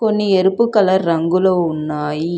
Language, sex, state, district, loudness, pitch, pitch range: Telugu, female, Telangana, Hyderabad, -16 LUFS, 185 Hz, 165-195 Hz